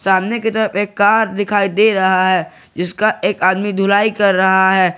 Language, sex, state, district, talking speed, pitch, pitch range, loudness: Hindi, male, Jharkhand, Garhwa, 190 wpm, 200 Hz, 190-210 Hz, -14 LUFS